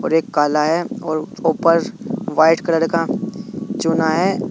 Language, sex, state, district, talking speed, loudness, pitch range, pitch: Hindi, male, Uttar Pradesh, Saharanpur, 145 wpm, -18 LUFS, 155-170 Hz, 165 Hz